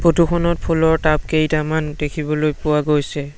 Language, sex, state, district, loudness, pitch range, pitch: Assamese, male, Assam, Sonitpur, -18 LUFS, 150-160 Hz, 155 Hz